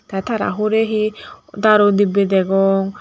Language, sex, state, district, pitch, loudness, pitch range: Chakma, female, Tripura, Dhalai, 205 Hz, -16 LUFS, 195-215 Hz